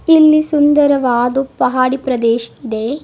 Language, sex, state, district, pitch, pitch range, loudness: Kannada, female, Karnataka, Bidar, 265 Hz, 245-295 Hz, -13 LUFS